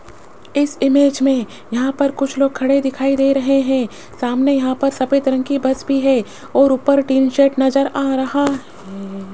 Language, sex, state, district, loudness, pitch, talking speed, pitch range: Hindi, female, Rajasthan, Jaipur, -16 LUFS, 270 Hz, 185 wpm, 260-275 Hz